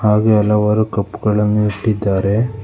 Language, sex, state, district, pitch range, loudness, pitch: Kannada, male, Karnataka, Bangalore, 105-110 Hz, -16 LUFS, 105 Hz